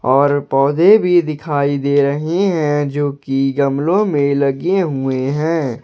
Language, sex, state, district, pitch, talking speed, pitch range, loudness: Hindi, male, Jharkhand, Ranchi, 145 Hz, 145 wpm, 140-165 Hz, -15 LUFS